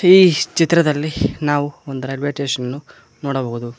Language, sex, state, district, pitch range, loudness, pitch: Kannada, male, Karnataka, Koppal, 130-155 Hz, -18 LUFS, 145 Hz